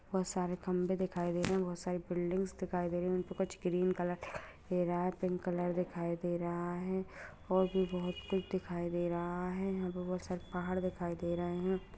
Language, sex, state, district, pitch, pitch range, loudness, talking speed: Hindi, female, Bihar, Lakhisarai, 180 Hz, 175-185 Hz, -37 LUFS, 220 wpm